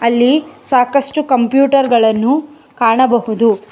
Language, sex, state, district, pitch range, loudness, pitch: Kannada, female, Karnataka, Bangalore, 235-280 Hz, -13 LUFS, 255 Hz